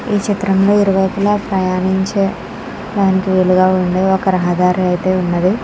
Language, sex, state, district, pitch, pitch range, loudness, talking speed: Telugu, female, Andhra Pradesh, Krishna, 190 Hz, 185-200 Hz, -14 LUFS, 115 wpm